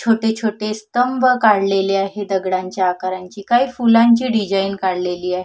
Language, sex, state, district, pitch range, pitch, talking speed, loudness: Marathi, female, Maharashtra, Solapur, 185-230 Hz, 205 Hz, 130 wpm, -17 LUFS